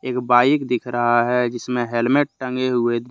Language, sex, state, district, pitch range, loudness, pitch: Hindi, male, Jharkhand, Deoghar, 120-130 Hz, -19 LUFS, 125 Hz